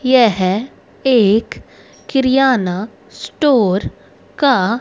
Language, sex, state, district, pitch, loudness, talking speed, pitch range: Hindi, female, Haryana, Rohtak, 235 Hz, -15 LUFS, 60 wpm, 200-265 Hz